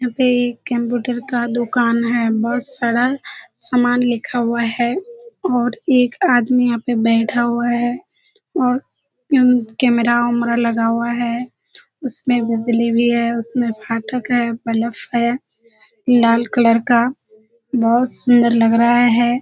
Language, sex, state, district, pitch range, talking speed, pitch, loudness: Hindi, female, Bihar, Kishanganj, 235-250 Hz, 135 wpm, 240 Hz, -17 LUFS